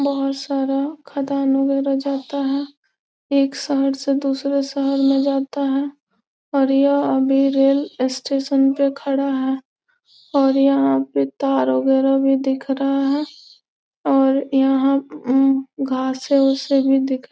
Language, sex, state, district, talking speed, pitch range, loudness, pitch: Hindi, female, Bihar, Gopalganj, 135 wpm, 270-275 Hz, -19 LUFS, 275 Hz